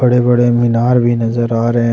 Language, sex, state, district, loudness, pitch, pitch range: Hindi, male, Jharkhand, Ranchi, -13 LUFS, 120 Hz, 115-120 Hz